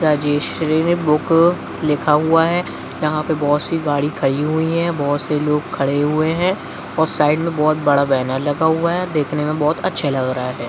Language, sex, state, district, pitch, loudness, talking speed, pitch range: Hindi, male, Bihar, Jahanabad, 150 Hz, -18 LUFS, 200 wpm, 145-165 Hz